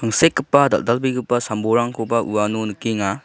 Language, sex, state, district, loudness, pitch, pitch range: Garo, male, Meghalaya, South Garo Hills, -19 LUFS, 115 Hz, 110-125 Hz